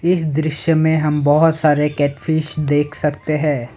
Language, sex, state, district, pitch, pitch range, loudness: Hindi, male, Assam, Sonitpur, 150 Hz, 145-160 Hz, -17 LUFS